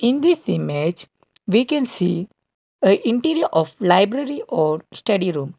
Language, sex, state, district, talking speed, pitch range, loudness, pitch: English, male, Karnataka, Bangalore, 130 wpm, 170-265 Hz, -19 LUFS, 200 Hz